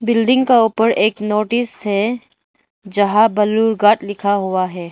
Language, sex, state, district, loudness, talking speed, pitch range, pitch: Hindi, female, Arunachal Pradesh, Lower Dibang Valley, -16 LUFS, 135 wpm, 200-225 Hz, 210 Hz